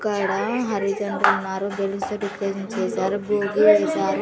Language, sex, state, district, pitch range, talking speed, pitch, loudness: Telugu, female, Andhra Pradesh, Sri Satya Sai, 195-210 Hz, 85 wpm, 205 Hz, -22 LUFS